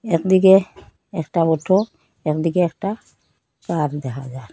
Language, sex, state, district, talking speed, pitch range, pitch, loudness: Bengali, female, Assam, Hailakandi, 105 wpm, 150-190 Hz, 165 Hz, -19 LUFS